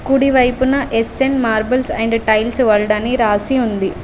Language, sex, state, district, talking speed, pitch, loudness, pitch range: Telugu, female, Telangana, Mahabubabad, 150 wpm, 230 Hz, -15 LUFS, 220-260 Hz